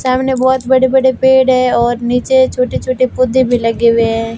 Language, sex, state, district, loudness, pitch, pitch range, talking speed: Hindi, female, Rajasthan, Barmer, -12 LUFS, 255 Hz, 240-260 Hz, 205 wpm